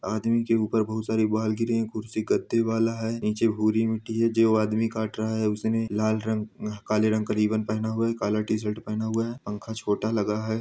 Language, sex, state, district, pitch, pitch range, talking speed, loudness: Hindi, male, Jharkhand, Sahebganj, 110 Hz, 110-115 Hz, 230 wpm, -26 LUFS